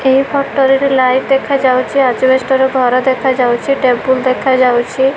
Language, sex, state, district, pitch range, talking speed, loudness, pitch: Odia, female, Odisha, Malkangiri, 255-270 Hz, 130 wpm, -12 LUFS, 260 Hz